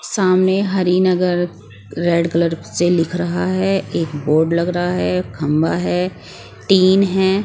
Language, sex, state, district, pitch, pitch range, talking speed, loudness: Hindi, female, Bihar, West Champaran, 175 Hz, 155-185 Hz, 135 wpm, -17 LUFS